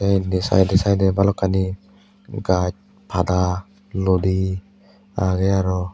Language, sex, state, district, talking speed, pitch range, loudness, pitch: Chakma, male, Tripura, West Tripura, 100 wpm, 95-100 Hz, -20 LUFS, 95 Hz